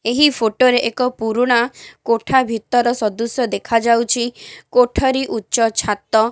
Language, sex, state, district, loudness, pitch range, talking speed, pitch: Odia, female, Odisha, Khordha, -17 LUFS, 225-250 Hz, 135 wpm, 235 Hz